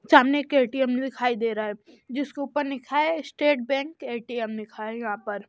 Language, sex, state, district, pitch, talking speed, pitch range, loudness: Hindi, male, Maharashtra, Washim, 265 Hz, 185 wpm, 230-285 Hz, -26 LUFS